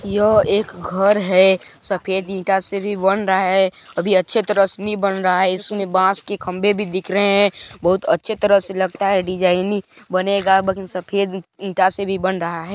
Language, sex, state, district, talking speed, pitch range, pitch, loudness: Hindi, male, Chhattisgarh, Balrampur, 200 wpm, 185-200 Hz, 195 Hz, -18 LUFS